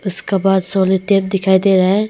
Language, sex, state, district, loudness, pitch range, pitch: Hindi, female, Arunachal Pradesh, Longding, -15 LUFS, 190-195 Hz, 195 Hz